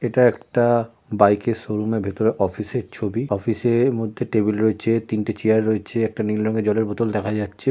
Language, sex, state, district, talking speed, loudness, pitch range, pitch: Bengali, male, West Bengal, Jalpaiguri, 170 wpm, -21 LUFS, 105-115 Hz, 110 Hz